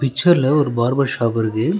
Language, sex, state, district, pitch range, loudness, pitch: Tamil, male, Tamil Nadu, Nilgiris, 120-150 Hz, -17 LUFS, 135 Hz